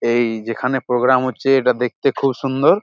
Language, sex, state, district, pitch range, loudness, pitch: Bengali, male, West Bengal, Jalpaiguri, 120-135 Hz, -18 LUFS, 125 Hz